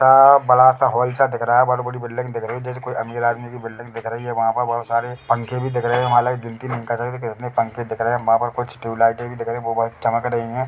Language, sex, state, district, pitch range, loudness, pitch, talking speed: Hindi, male, Chhattisgarh, Bilaspur, 115-125 Hz, -19 LUFS, 120 Hz, 275 wpm